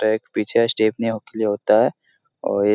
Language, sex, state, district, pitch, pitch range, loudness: Hindi, male, Bihar, Supaul, 110 Hz, 105-115 Hz, -20 LUFS